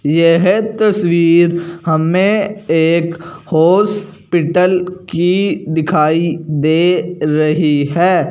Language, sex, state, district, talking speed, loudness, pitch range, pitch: Hindi, male, Punjab, Fazilka, 70 wpm, -13 LUFS, 160-185 Hz, 170 Hz